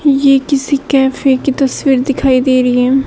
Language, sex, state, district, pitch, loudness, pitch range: Hindi, female, Haryana, Rohtak, 270 Hz, -12 LUFS, 260-275 Hz